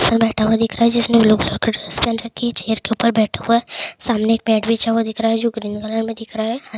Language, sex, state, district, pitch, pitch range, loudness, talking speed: Hindi, female, Bihar, Jamui, 225 Hz, 220-230 Hz, -18 LUFS, 310 wpm